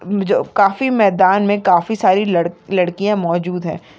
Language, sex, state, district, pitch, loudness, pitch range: Hindi, female, Maharashtra, Nagpur, 195 Hz, -16 LUFS, 175-205 Hz